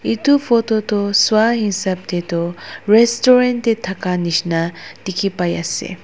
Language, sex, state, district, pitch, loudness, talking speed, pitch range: Nagamese, female, Nagaland, Dimapur, 195 Hz, -17 LUFS, 140 wpm, 175-225 Hz